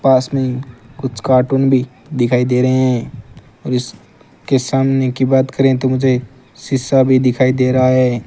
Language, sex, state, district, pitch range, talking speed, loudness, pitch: Hindi, male, Rajasthan, Bikaner, 125-135 Hz, 175 wpm, -15 LUFS, 130 Hz